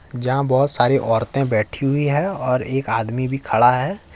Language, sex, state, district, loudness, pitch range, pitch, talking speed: Hindi, male, Jharkhand, Ranchi, -18 LUFS, 120-140 Hz, 130 Hz, 190 wpm